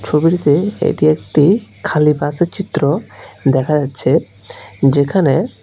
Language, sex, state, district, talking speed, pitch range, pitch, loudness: Bengali, male, Tripura, West Tripura, 95 wpm, 140-175 Hz, 150 Hz, -15 LUFS